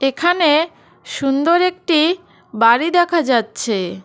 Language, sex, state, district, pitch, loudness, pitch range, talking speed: Bengali, female, West Bengal, Cooch Behar, 305 Hz, -16 LUFS, 235-345 Hz, 90 wpm